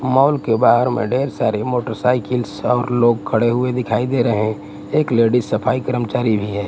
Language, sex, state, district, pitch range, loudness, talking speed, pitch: Hindi, male, Gujarat, Gandhinagar, 110-125 Hz, -18 LUFS, 190 wpm, 120 Hz